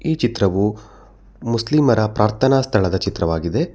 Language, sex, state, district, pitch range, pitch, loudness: Kannada, male, Karnataka, Bangalore, 100-135 Hz, 110 Hz, -18 LUFS